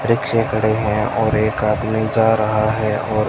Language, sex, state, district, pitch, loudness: Hindi, male, Rajasthan, Bikaner, 110 Hz, -18 LUFS